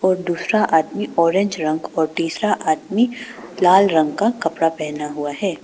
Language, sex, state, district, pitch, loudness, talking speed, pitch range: Hindi, female, Arunachal Pradesh, Papum Pare, 170 Hz, -19 LUFS, 160 wpm, 155-195 Hz